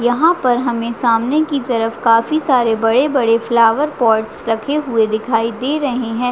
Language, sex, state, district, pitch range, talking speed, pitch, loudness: Hindi, female, Chhattisgarh, Raigarh, 230-270 Hz, 180 wpm, 240 Hz, -15 LUFS